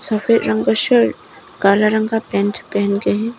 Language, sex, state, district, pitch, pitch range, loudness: Hindi, female, Arunachal Pradesh, Papum Pare, 215 Hz, 200-230 Hz, -16 LUFS